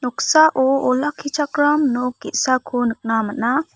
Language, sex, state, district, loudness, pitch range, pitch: Garo, female, Meghalaya, West Garo Hills, -18 LUFS, 245-295 Hz, 260 Hz